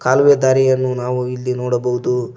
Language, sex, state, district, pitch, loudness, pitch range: Kannada, male, Karnataka, Koppal, 125 Hz, -16 LUFS, 125-130 Hz